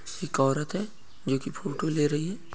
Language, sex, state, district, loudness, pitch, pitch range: Hindi, male, Bihar, Muzaffarpur, -29 LUFS, 150 Hz, 135-185 Hz